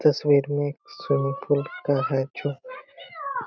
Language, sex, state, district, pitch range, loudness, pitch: Hindi, male, Chhattisgarh, Korba, 140-190 Hz, -25 LUFS, 145 Hz